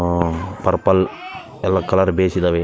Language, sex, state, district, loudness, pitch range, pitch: Kannada, male, Karnataka, Raichur, -18 LUFS, 85-95 Hz, 95 Hz